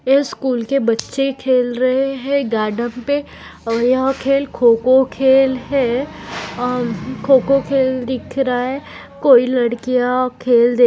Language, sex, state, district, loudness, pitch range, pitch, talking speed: Hindi, female, Maharashtra, Aurangabad, -17 LUFS, 245-270 Hz, 255 Hz, 140 wpm